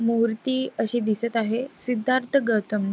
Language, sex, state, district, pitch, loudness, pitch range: Marathi, female, Maharashtra, Aurangabad, 235 Hz, -24 LUFS, 225-255 Hz